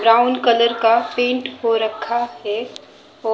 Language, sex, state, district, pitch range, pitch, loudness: Hindi, female, Haryana, Jhajjar, 225-240 Hz, 235 Hz, -18 LUFS